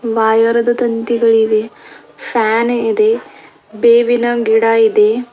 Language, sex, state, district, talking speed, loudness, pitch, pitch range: Kannada, female, Karnataka, Bidar, 90 wpm, -13 LUFS, 230 Hz, 225-240 Hz